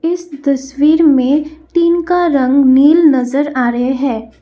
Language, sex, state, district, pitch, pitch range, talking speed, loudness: Hindi, female, Assam, Kamrup Metropolitan, 285 Hz, 265-320 Hz, 150 wpm, -12 LUFS